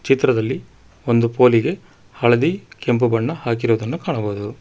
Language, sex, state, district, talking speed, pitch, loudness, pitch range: Kannada, male, Karnataka, Bangalore, 130 wpm, 115 Hz, -19 LUFS, 110-125 Hz